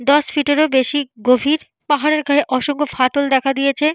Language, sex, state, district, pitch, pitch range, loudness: Bengali, female, Jharkhand, Jamtara, 285 Hz, 265-295 Hz, -17 LUFS